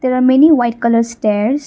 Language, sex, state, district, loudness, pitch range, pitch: English, female, Assam, Kamrup Metropolitan, -13 LUFS, 230-275 Hz, 245 Hz